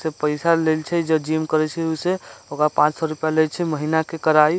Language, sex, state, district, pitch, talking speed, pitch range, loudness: Bajjika, male, Bihar, Vaishali, 160 Hz, 250 wpm, 155-165 Hz, -21 LUFS